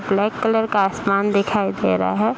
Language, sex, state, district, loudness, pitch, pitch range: Hindi, female, Bihar, Saharsa, -19 LUFS, 200 Hz, 195-210 Hz